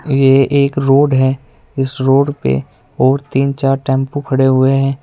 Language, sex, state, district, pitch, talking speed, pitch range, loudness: Hindi, male, Uttar Pradesh, Saharanpur, 135 Hz, 165 wpm, 135-140 Hz, -14 LUFS